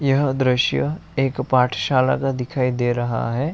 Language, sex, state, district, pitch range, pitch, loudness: Hindi, male, Bihar, Araria, 125-135 Hz, 130 Hz, -20 LUFS